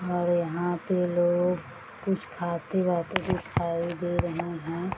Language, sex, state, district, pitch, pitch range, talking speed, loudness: Hindi, female, Bihar, Madhepura, 175 Hz, 170-180 Hz, 120 wpm, -28 LUFS